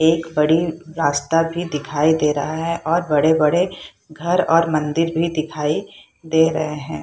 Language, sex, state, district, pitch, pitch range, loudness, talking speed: Hindi, female, Bihar, Purnia, 160 Hz, 150-165 Hz, -19 LUFS, 155 wpm